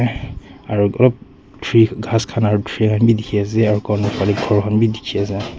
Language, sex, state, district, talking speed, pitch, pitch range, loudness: Nagamese, male, Nagaland, Dimapur, 205 wpm, 105 Hz, 105-115 Hz, -17 LUFS